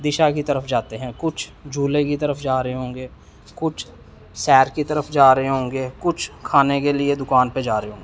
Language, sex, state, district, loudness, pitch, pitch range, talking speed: Hindi, male, Punjab, Pathankot, -20 LUFS, 140 Hz, 130-150 Hz, 210 wpm